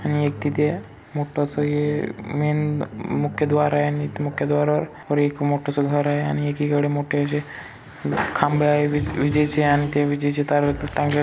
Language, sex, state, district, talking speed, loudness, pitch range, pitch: Marathi, male, Maharashtra, Chandrapur, 160 wpm, -22 LUFS, 145-150 Hz, 145 Hz